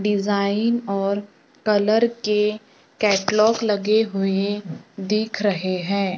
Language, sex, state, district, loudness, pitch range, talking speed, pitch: Hindi, male, Maharashtra, Gondia, -21 LUFS, 200-215 Hz, 95 wpm, 205 Hz